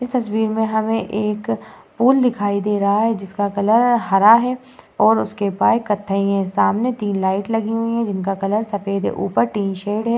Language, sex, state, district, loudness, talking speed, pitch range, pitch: Hindi, female, Uttar Pradesh, Muzaffarnagar, -18 LUFS, 195 wpm, 200-225 Hz, 210 Hz